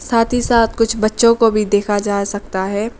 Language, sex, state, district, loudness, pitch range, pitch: Hindi, female, Arunachal Pradesh, Lower Dibang Valley, -16 LUFS, 205-230 Hz, 215 Hz